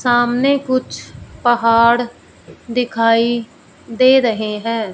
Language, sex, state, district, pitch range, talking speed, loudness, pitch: Hindi, female, Punjab, Fazilka, 230-250 Hz, 85 wpm, -15 LUFS, 240 Hz